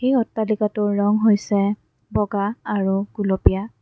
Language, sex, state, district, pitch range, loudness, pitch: Assamese, female, Assam, Kamrup Metropolitan, 200-215 Hz, -21 LUFS, 205 Hz